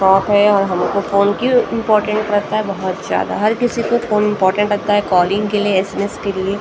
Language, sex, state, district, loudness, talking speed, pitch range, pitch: Hindi, female, Maharashtra, Gondia, -16 LUFS, 210 wpm, 195-210 Hz, 205 Hz